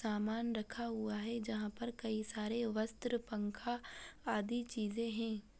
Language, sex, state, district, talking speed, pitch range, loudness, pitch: Hindi, female, Bihar, Saharsa, 140 wpm, 215-235 Hz, -41 LUFS, 225 Hz